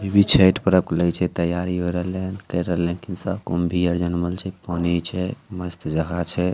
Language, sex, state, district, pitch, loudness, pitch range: Hindi, male, Bihar, Begusarai, 90 Hz, -22 LUFS, 85-95 Hz